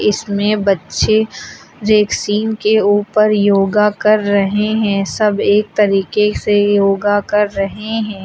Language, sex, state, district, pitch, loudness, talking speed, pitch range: Hindi, female, Uttar Pradesh, Lucknow, 210 Hz, -14 LUFS, 125 wpm, 200-215 Hz